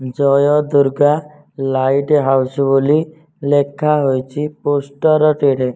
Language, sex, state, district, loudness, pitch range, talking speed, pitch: Odia, male, Odisha, Nuapada, -15 LUFS, 135-150 Hz, 85 wpm, 145 Hz